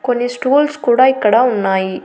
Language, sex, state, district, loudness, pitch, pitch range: Telugu, female, Andhra Pradesh, Annamaya, -14 LUFS, 245 Hz, 210-260 Hz